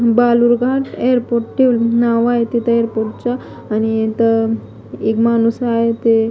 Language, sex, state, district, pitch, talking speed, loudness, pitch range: Marathi, female, Maharashtra, Mumbai Suburban, 235 Hz, 115 wpm, -16 LUFS, 225-240 Hz